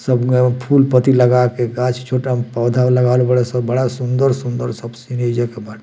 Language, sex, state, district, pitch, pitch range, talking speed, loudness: Bhojpuri, male, Bihar, Muzaffarpur, 125 Hz, 120-125 Hz, 195 wpm, -16 LUFS